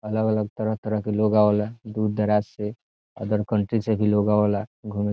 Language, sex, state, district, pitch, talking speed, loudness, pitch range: Bhojpuri, male, Bihar, Saran, 105 Hz, 185 wpm, -24 LUFS, 105-110 Hz